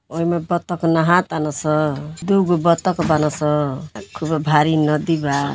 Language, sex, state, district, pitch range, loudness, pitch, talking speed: Bhojpuri, female, Uttar Pradesh, Gorakhpur, 150-170 Hz, -18 LUFS, 155 Hz, 150 wpm